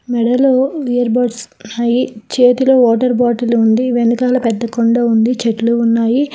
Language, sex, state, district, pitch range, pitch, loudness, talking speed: Telugu, female, Telangana, Hyderabad, 230-250 Hz, 240 Hz, -13 LUFS, 125 wpm